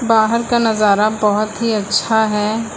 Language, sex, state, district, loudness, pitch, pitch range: Hindi, female, Uttar Pradesh, Lucknow, -15 LUFS, 220 Hz, 210-225 Hz